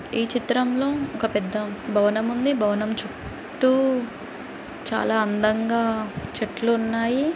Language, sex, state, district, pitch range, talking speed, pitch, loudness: Telugu, female, Andhra Pradesh, Guntur, 215-255 Hz, 100 wpm, 230 Hz, -24 LUFS